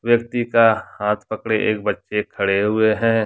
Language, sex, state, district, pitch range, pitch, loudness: Hindi, male, Jharkhand, Deoghar, 105-115 Hz, 110 Hz, -19 LUFS